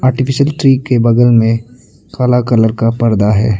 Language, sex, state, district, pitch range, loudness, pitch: Hindi, male, Arunachal Pradesh, Lower Dibang Valley, 110-130 Hz, -12 LUFS, 120 Hz